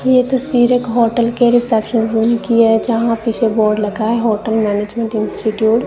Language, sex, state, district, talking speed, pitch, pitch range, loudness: Hindi, female, Punjab, Kapurthala, 165 wpm, 230 Hz, 220-235 Hz, -15 LUFS